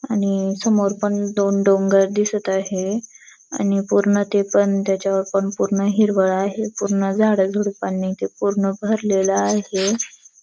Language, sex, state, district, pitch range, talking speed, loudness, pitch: Marathi, female, Maharashtra, Dhule, 195-205 Hz, 125 wpm, -19 LUFS, 200 Hz